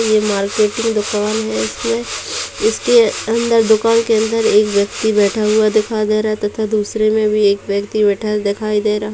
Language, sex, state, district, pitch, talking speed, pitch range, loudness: Hindi, female, Bihar, Saharsa, 215 Hz, 195 wpm, 210-220 Hz, -15 LUFS